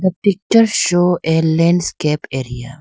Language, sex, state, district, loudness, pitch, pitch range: English, female, Arunachal Pradesh, Lower Dibang Valley, -15 LUFS, 170 Hz, 150-185 Hz